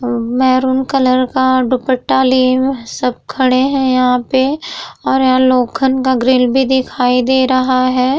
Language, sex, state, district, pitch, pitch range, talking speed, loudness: Hindi, female, Uttar Pradesh, Etah, 260 Hz, 255-260 Hz, 160 wpm, -13 LUFS